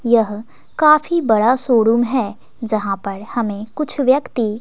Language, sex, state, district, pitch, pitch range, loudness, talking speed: Hindi, female, Bihar, West Champaran, 235 Hz, 215-260 Hz, -17 LUFS, 130 wpm